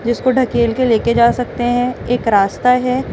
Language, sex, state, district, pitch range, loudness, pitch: Hindi, female, Chhattisgarh, Raipur, 235-250 Hz, -15 LUFS, 245 Hz